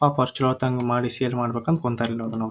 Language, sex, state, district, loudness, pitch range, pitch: Kannada, male, Karnataka, Dharwad, -24 LUFS, 120-130 Hz, 125 Hz